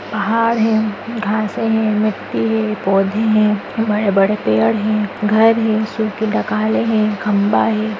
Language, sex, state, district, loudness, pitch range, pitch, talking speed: Hindi, female, Bihar, Madhepura, -16 LUFS, 205-220 Hz, 215 Hz, 135 wpm